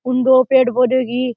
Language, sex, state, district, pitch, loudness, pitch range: Rajasthani, male, Rajasthan, Nagaur, 255 Hz, -14 LUFS, 250-260 Hz